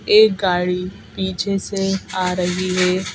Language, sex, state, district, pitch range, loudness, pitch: Hindi, female, Madhya Pradesh, Bhopal, 180-195 Hz, -19 LUFS, 185 Hz